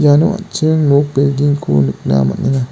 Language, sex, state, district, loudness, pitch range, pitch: Garo, male, Meghalaya, West Garo Hills, -14 LUFS, 100-150 Hz, 140 Hz